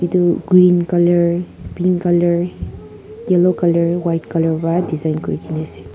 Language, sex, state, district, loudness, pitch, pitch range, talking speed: Nagamese, female, Nagaland, Kohima, -16 LUFS, 170 Hz, 160-175 Hz, 130 wpm